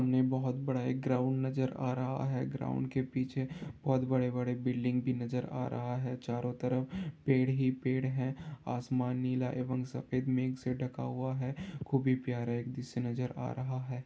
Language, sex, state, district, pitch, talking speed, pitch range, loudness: Hindi, male, Bihar, Gopalganj, 130 Hz, 180 wpm, 125-130 Hz, -35 LUFS